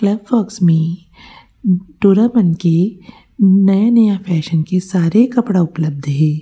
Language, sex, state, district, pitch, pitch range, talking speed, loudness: Chhattisgarhi, female, Chhattisgarh, Rajnandgaon, 185 Hz, 165-215 Hz, 120 wpm, -14 LUFS